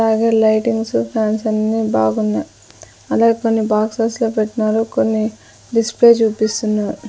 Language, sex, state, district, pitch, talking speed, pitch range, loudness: Telugu, female, Andhra Pradesh, Sri Satya Sai, 220 Hz, 110 wpm, 210-225 Hz, -16 LUFS